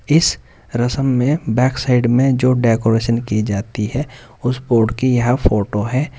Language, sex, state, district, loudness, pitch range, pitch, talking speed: Hindi, male, Uttar Pradesh, Saharanpur, -17 LUFS, 115-130 Hz, 120 Hz, 165 wpm